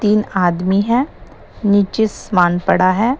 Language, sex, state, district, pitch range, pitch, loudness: Hindi, female, Assam, Sonitpur, 185-220 Hz, 200 Hz, -16 LUFS